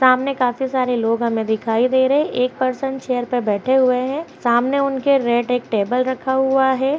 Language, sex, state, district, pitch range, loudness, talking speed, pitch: Hindi, female, Uttar Pradesh, Jyotiba Phule Nagar, 240-265 Hz, -18 LUFS, 205 wpm, 255 Hz